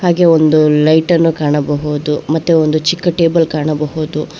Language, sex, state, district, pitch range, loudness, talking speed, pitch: Kannada, female, Karnataka, Bangalore, 150-165 Hz, -13 LUFS, 135 wpm, 155 Hz